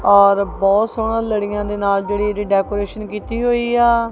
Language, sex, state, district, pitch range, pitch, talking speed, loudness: Punjabi, female, Punjab, Kapurthala, 200-225 Hz, 205 Hz, 175 wpm, -17 LUFS